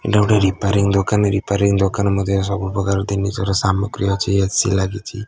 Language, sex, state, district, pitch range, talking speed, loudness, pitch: Odia, male, Odisha, Khordha, 95-100 Hz, 135 wpm, -18 LUFS, 100 Hz